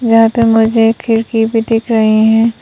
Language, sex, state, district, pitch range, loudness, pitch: Hindi, female, Arunachal Pradesh, Papum Pare, 225-230 Hz, -11 LUFS, 225 Hz